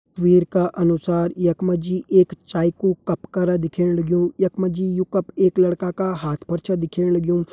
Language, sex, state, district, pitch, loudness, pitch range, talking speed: Hindi, male, Uttarakhand, Uttarkashi, 180 Hz, -20 LUFS, 170-185 Hz, 205 wpm